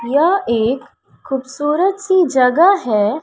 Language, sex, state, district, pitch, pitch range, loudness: Hindi, female, Bihar, West Champaran, 290 Hz, 250-360 Hz, -15 LUFS